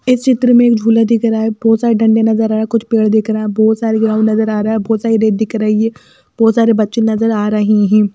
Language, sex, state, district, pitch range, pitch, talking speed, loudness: Hindi, female, Madhya Pradesh, Bhopal, 215-225 Hz, 220 Hz, 295 wpm, -13 LUFS